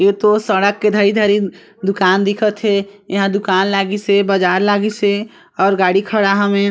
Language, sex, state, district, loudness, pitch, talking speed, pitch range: Chhattisgarhi, female, Chhattisgarh, Sarguja, -15 LUFS, 200 Hz, 160 wpm, 195-205 Hz